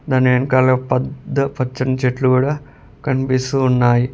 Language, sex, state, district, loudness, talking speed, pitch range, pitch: Telugu, male, Telangana, Mahabubabad, -17 LUFS, 130 wpm, 125-135 Hz, 130 Hz